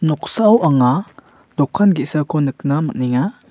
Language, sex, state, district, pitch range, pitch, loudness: Garo, male, Meghalaya, West Garo Hills, 140-195 Hz, 150 Hz, -16 LUFS